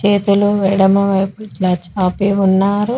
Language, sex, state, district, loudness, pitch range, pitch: Telugu, female, Telangana, Mahabubabad, -15 LUFS, 190-205 Hz, 195 Hz